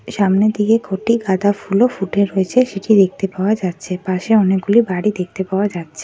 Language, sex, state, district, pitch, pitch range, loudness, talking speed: Bengali, female, West Bengal, Kolkata, 195 Hz, 190-215 Hz, -16 LUFS, 170 wpm